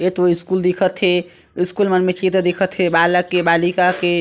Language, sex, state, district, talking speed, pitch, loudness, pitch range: Chhattisgarhi, male, Chhattisgarh, Sarguja, 215 wpm, 180 Hz, -17 LUFS, 175-185 Hz